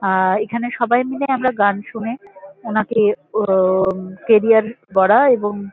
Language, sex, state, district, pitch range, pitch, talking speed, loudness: Bengali, female, West Bengal, North 24 Parganas, 195-235 Hz, 215 Hz, 135 wpm, -17 LUFS